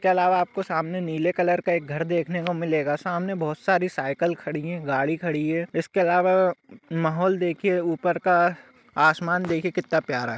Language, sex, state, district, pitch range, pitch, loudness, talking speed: Hindi, male, Jharkhand, Sahebganj, 160-180 Hz, 175 Hz, -24 LUFS, 190 wpm